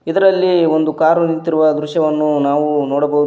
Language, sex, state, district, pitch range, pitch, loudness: Kannada, male, Karnataka, Koppal, 150-165 Hz, 155 Hz, -15 LUFS